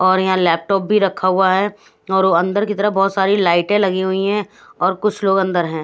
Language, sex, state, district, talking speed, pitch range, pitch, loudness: Hindi, female, Haryana, Rohtak, 235 wpm, 185-200 Hz, 190 Hz, -16 LUFS